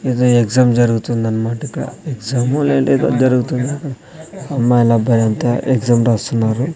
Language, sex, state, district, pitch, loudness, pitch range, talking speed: Telugu, male, Andhra Pradesh, Sri Satya Sai, 125 Hz, -15 LUFS, 115-135 Hz, 105 wpm